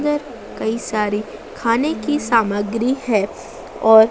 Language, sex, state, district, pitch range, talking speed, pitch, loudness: Hindi, female, Madhya Pradesh, Dhar, 215-260 Hz, 100 wpm, 230 Hz, -19 LUFS